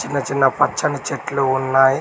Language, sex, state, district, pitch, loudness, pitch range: Telugu, male, Telangana, Mahabubabad, 135 Hz, -18 LUFS, 135-140 Hz